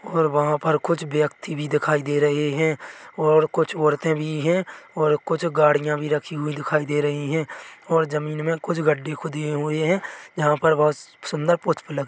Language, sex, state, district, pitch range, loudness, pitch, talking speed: Hindi, male, Chhattisgarh, Bilaspur, 150-160 Hz, -22 LUFS, 155 Hz, 195 wpm